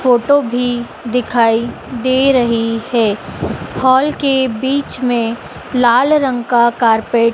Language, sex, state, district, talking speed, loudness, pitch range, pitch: Hindi, female, Madhya Pradesh, Dhar, 125 wpm, -14 LUFS, 230-260 Hz, 245 Hz